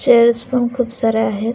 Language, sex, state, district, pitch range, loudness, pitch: Marathi, female, Maharashtra, Dhule, 225-245 Hz, -16 LUFS, 235 Hz